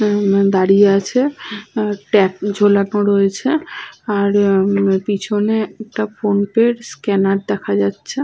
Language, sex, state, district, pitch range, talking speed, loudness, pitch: Bengali, female, West Bengal, Paschim Medinipur, 195-220 Hz, 95 wpm, -16 LUFS, 205 Hz